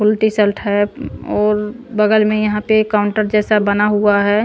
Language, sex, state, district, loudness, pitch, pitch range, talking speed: Hindi, female, Punjab, Pathankot, -15 LUFS, 210 Hz, 210-215 Hz, 175 wpm